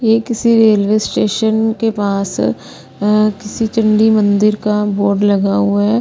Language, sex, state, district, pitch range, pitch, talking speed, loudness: Hindi, female, Chandigarh, Chandigarh, 200-220 Hz, 210 Hz, 140 wpm, -14 LUFS